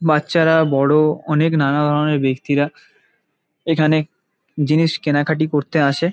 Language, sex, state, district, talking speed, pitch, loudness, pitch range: Bengali, male, West Bengal, Kolkata, 115 wpm, 155 Hz, -17 LUFS, 145-160 Hz